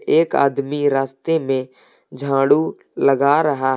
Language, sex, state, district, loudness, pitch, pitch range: Hindi, male, Uttar Pradesh, Lucknow, -18 LUFS, 140 Hz, 135-150 Hz